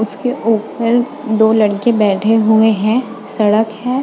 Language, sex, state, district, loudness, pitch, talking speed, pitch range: Hindi, female, Goa, North and South Goa, -14 LUFS, 220 Hz, 135 wpm, 215-235 Hz